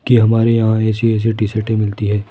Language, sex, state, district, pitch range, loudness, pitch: Hindi, male, Rajasthan, Jaipur, 105-115 Hz, -15 LUFS, 110 Hz